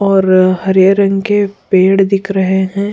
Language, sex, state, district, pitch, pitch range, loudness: Hindi, female, Goa, North and South Goa, 195 Hz, 190-200 Hz, -11 LUFS